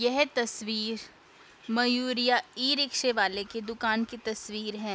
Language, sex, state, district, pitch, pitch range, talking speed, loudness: Hindi, female, Uttar Pradesh, Budaun, 230 Hz, 220-250 Hz, 120 wpm, -28 LUFS